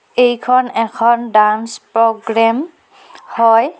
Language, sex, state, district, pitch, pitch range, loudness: Assamese, female, Assam, Kamrup Metropolitan, 230 Hz, 225-245 Hz, -14 LUFS